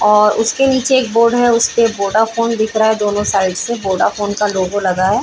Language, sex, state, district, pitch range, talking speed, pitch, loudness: Hindi, female, Bihar, Saran, 205-230 Hz, 230 wpm, 220 Hz, -14 LUFS